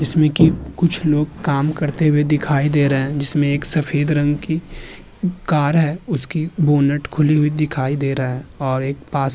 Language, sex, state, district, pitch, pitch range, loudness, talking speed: Hindi, male, Uttar Pradesh, Muzaffarnagar, 150 Hz, 140-155 Hz, -18 LUFS, 190 wpm